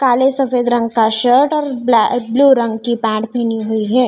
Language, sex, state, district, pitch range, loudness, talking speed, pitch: Hindi, female, Maharashtra, Mumbai Suburban, 225-255 Hz, -14 LUFS, 205 wpm, 240 Hz